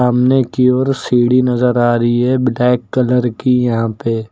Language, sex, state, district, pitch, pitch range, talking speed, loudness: Hindi, male, Uttar Pradesh, Lucknow, 125 Hz, 120-125 Hz, 180 wpm, -14 LUFS